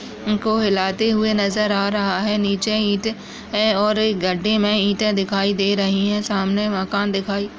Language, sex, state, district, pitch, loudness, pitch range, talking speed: Hindi, female, Maharashtra, Chandrapur, 205 Hz, -19 LUFS, 200-215 Hz, 175 wpm